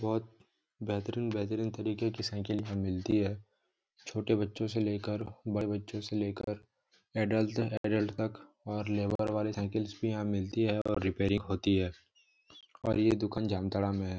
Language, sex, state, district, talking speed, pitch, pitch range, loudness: Hindi, male, Jharkhand, Jamtara, 165 wpm, 105 Hz, 100-110 Hz, -33 LUFS